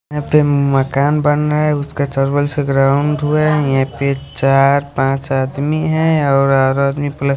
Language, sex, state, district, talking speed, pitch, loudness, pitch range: Hindi, male, Odisha, Khordha, 120 wpm, 140 Hz, -15 LUFS, 135-150 Hz